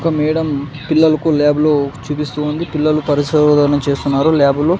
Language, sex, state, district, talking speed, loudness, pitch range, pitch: Telugu, male, Andhra Pradesh, Sri Satya Sai, 135 wpm, -15 LUFS, 145-155 Hz, 150 Hz